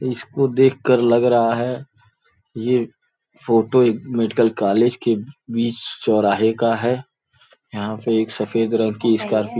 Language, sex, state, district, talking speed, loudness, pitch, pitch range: Hindi, male, Uttar Pradesh, Gorakhpur, 145 wpm, -19 LUFS, 115 Hz, 110-125 Hz